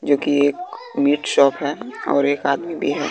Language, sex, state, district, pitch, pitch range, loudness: Hindi, male, Bihar, West Champaran, 145 Hz, 140-150 Hz, -19 LUFS